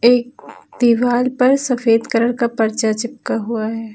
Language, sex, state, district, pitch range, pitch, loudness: Hindi, female, Uttar Pradesh, Lucknow, 225-245 Hz, 235 Hz, -17 LUFS